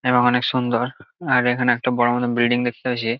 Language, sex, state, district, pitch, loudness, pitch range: Bengali, male, West Bengal, Jalpaiguri, 125 Hz, -20 LUFS, 120-125 Hz